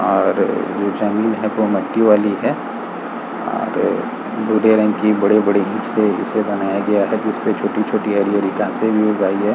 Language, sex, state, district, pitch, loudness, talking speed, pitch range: Hindi, male, Bihar, Saran, 105 Hz, -17 LUFS, 190 wpm, 100-110 Hz